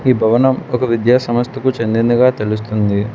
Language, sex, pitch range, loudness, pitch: Telugu, male, 110-125 Hz, -15 LUFS, 120 Hz